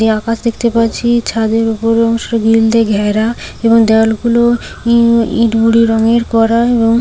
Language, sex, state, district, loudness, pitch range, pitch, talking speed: Bengali, female, West Bengal, Paschim Medinipur, -12 LUFS, 225-235 Hz, 230 Hz, 145 wpm